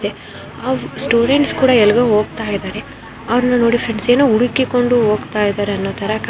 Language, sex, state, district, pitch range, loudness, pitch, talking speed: Kannada, female, Karnataka, Belgaum, 210-245 Hz, -15 LUFS, 235 Hz, 145 wpm